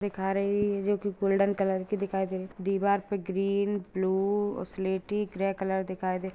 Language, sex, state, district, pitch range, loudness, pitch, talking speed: Hindi, female, Bihar, Jamui, 190-200 Hz, -29 LUFS, 195 Hz, 200 wpm